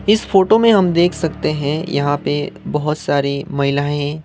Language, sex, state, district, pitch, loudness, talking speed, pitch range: Hindi, male, Sikkim, Gangtok, 150 Hz, -17 LUFS, 185 wpm, 145-180 Hz